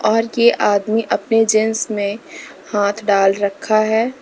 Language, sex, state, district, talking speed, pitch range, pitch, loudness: Hindi, female, Uttar Pradesh, Lalitpur, 140 wpm, 205-230 Hz, 220 Hz, -16 LUFS